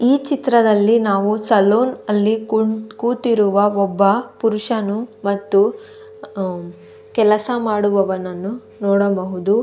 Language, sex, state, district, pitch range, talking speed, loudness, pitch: Kannada, female, Karnataka, Dakshina Kannada, 200-230 Hz, 80 wpm, -17 LUFS, 210 Hz